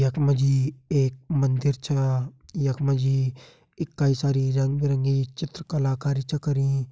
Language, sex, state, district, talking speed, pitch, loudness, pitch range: Hindi, male, Uttarakhand, Tehri Garhwal, 120 wpm, 135 Hz, -25 LUFS, 135-145 Hz